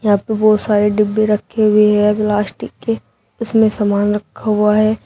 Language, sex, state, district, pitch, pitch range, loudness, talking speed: Hindi, female, Uttar Pradesh, Shamli, 210 Hz, 205-215 Hz, -15 LUFS, 155 wpm